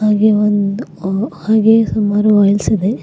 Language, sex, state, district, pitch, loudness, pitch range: Kannada, female, Karnataka, Bidar, 210 Hz, -14 LUFS, 205-215 Hz